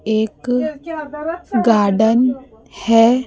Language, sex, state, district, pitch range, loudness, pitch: Hindi, female, Chhattisgarh, Raipur, 225-300 Hz, -17 LUFS, 250 Hz